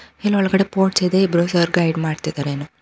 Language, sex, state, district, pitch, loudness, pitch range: Kannada, female, Karnataka, Bangalore, 175 Hz, -18 LUFS, 160-190 Hz